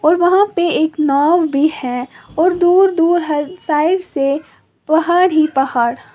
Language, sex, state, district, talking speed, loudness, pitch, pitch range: Hindi, female, Uttar Pradesh, Lalitpur, 155 wpm, -15 LUFS, 315 Hz, 290-350 Hz